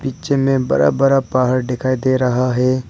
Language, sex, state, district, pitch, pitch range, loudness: Hindi, male, Arunachal Pradesh, Papum Pare, 130 Hz, 125-135 Hz, -16 LUFS